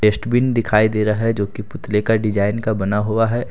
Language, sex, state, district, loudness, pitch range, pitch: Hindi, male, Jharkhand, Deoghar, -18 LUFS, 105-115 Hz, 110 Hz